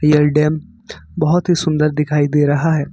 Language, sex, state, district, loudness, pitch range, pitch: Hindi, male, Jharkhand, Ranchi, -16 LUFS, 150-160 Hz, 150 Hz